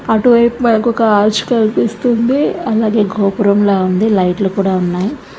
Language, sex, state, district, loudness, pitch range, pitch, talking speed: Telugu, female, Andhra Pradesh, Visakhapatnam, -13 LUFS, 195-235 Hz, 215 Hz, 145 wpm